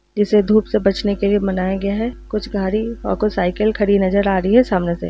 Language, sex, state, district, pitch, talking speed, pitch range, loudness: Hindi, female, Uttar Pradesh, Varanasi, 205 Hz, 260 wpm, 195-215 Hz, -18 LUFS